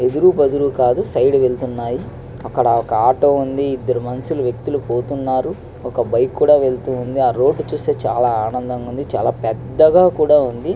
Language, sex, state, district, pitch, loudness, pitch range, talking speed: Telugu, male, Andhra Pradesh, Krishna, 130 Hz, -17 LUFS, 125-140 Hz, 100 wpm